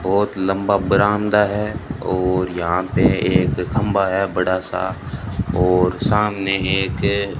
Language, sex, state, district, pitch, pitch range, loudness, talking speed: Hindi, male, Rajasthan, Bikaner, 95 Hz, 90-105 Hz, -19 LUFS, 130 wpm